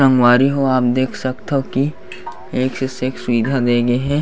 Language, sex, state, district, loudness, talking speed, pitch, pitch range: Chhattisgarhi, male, Chhattisgarh, Bastar, -17 LUFS, 185 wpm, 130 Hz, 125-135 Hz